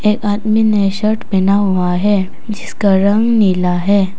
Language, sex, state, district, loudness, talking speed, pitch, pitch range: Hindi, female, Arunachal Pradesh, Papum Pare, -14 LUFS, 160 wpm, 200 Hz, 190-215 Hz